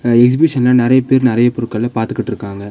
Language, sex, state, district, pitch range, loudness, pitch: Tamil, male, Tamil Nadu, Nilgiris, 115-125 Hz, -14 LUFS, 120 Hz